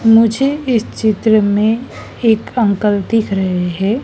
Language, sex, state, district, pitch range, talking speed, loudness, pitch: Hindi, female, Madhya Pradesh, Dhar, 205-230 Hz, 135 wpm, -15 LUFS, 220 Hz